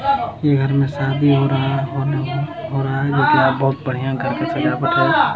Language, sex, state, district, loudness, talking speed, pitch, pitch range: Hindi, male, Bihar, Jamui, -18 LUFS, 165 wpm, 135 Hz, 135-140 Hz